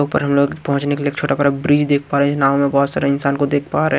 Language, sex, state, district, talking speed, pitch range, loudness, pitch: Hindi, male, Punjab, Kapurthala, 360 wpm, 140-145 Hz, -17 LUFS, 140 Hz